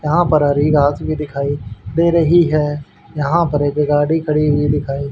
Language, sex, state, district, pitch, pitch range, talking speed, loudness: Hindi, male, Haryana, Rohtak, 150 Hz, 145-155 Hz, 185 wpm, -16 LUFS